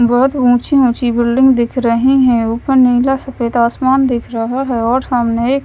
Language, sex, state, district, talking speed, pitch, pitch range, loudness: Hindi, female, Punjab, Kapurthala, 180 wpm, 245 Hz, 235-265 Hz, -13 LUFS